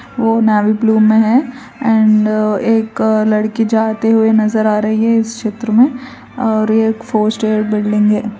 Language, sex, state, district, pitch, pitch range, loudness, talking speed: Hindi, female, Uttar Pradesh, Varanasi, 220 Hz, 215-225 Hz, -13 LUFS, 165 wpm